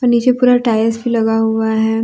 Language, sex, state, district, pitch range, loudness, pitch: Hindi, female, Jharkhand, Deoghar, 225-245 Hz, -14 LUFS, 230 Hz